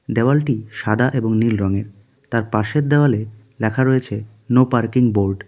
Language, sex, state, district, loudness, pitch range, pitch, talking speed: Bengali, male, West Bengal, Darjeeling, -18 LUFS, 105-130 Hz, 115 Hz, 155 wpm